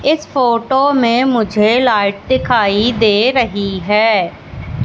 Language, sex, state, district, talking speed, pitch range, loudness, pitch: Hindi, female, Madhya Pradesh, Katni, 110 wpm, 210-260 Hz, -13 LUFS, 230 Hz